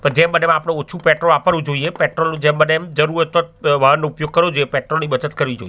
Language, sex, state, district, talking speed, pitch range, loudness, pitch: Gujarati, male, Gujarat, Gandhinagar, 285 wpm, 145-165 Hz, -16 LUFS, 155 Hz